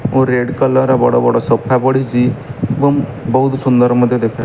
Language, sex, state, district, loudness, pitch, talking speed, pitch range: Odia, male, Odisha, Malkangiri, -13 LUFS, 130 Hz, 190 wpm, 120-130 Hz